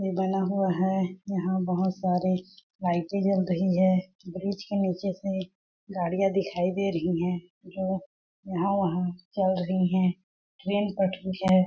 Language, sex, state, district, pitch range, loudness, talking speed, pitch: Hindi, female, Chhattisgarh, Balrampur, 180-195 Hz, -28 LUFS, 140 wpm, 185 Hz